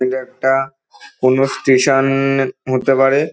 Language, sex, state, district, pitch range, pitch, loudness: Bengali, male, West Bengal, North 24 Parganas, 130-135 Hz, 135 Hz, -15 LUFS